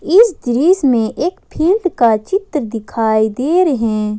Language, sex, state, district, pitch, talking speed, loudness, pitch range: Hindi, female, Jharkhand, Ranchi, 275 Hz, 155 wpm, -15 LUFS, 225-360 Hz